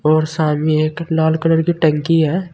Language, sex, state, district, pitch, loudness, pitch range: Hindi, male, Uttar Pradesh, Saharanpur, 160 Hz, -16 LUFS, 155-165 Hz